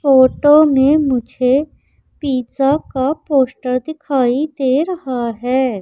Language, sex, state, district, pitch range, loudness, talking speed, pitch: Hindi, female, Madhya Pradesh, Umaria, 255-295 Hz, -16 LUFS, 105 wpm, 270 Hz